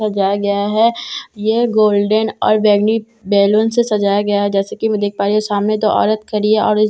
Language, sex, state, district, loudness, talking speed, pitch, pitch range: Hindi, female, Bihar, Katihar, -15 LUFS, 225 wpm, 215 Hz, 205-220 Hz